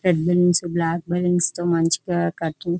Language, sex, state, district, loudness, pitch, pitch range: Telugu, female, Andhra Pradesh, Visakhapatnam, -21 LUFS, 175 Hz, 170-175 Hz